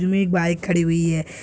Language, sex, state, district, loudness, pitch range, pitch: Hindi, male, Bihar, Purnia, -20 LUFS, 165-185 Hz, 170 Hz